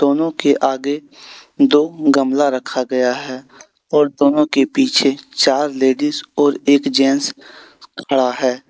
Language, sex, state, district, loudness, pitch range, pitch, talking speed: Hindi, male, Jharkhand, Deoghar, -16 LUFS, 135-145 Hz, 140 Hz, 130 wpm